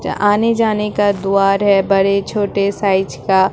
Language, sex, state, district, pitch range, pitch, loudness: Hindi, female, Bihar, Katihar, 195-205 Hz, 200 Hz, -15 LUFS